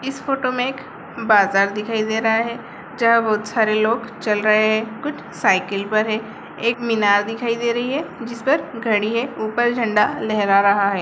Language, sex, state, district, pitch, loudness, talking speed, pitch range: Hindi, female, Bihar, Sitamarhi, 225 Hz, -19 LUFS, 180 wpm, 215-235 Hz